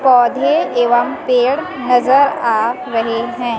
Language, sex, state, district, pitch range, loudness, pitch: Hindi, female, Chhattisgarh, Raipur, 235-255 Hz, -15 LUFS, 245 Hz